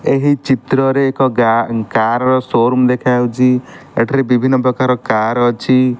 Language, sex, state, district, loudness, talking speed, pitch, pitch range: Odia, male, Odisha, Malkangiri, -14 LUFS, 120 wpm, 125 Hz, 120-130 Hz